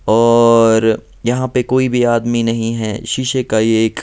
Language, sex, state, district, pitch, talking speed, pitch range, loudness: Hindi, male, Bihar, Patna, 115 Hz, 180 wpm, 110-125 Hz, -14 LUFS